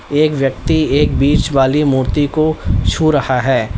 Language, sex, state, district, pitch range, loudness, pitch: Hindi, male, Uttar Pradesh, Lalitpur, 135-155 Hz, -14 LUFS, 145 Hz